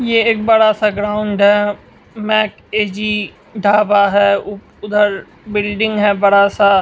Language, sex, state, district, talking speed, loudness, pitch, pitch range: Hindi, male, Bihar, West Champaran, 130 wpm, -14 LUFS, 210 Hz, 200-215 Hz